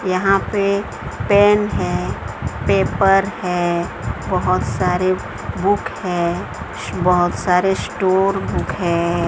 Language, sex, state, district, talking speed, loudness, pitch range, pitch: Hindi, female, Odisha, Sambalpur, 95 wpm, -18 LUFS, 175-195 Hz, 180 Hz